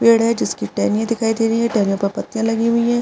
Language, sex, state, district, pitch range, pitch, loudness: Hindi, female, Maharashtra, Aurangabad, 225-230 Hz, 225 Hz, -18 LUFS